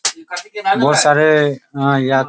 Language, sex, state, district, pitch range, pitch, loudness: Hindi, male, Bihar, Sitamarhi, 140-180 Hz, 150 Hz, -14 LUFS